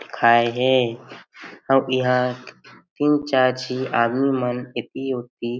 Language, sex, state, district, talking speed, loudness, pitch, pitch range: Chhattisgarhi, male, Chhattisgarh, Jashpur, 130 wpm, -21 LUFS, 125 Hz, 120-130 Hz